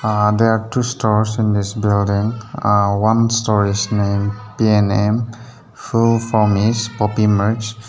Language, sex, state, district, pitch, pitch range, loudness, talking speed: English, male, Nagaland, Dimapur, 110 Hz, 105-115 Hz, -17 LUFS, 135 wpm